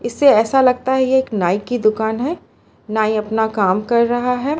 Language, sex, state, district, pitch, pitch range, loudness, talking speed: Hindi, female, Gujarat, Valsad, 235 Hz, 215-260 Hz, -17 LUFS, 210 wpm